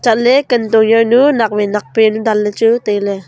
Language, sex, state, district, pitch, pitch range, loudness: Wancho, female, Arunachal Pradesh, Longding, 225 Hz, 210-235 Hz, -12 LUFS